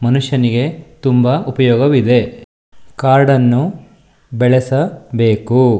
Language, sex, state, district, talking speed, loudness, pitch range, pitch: Kannada, male, Karnataka, Shimoga, 50 wpm, -14 LUFS, 125-145 Hz, 130 Hz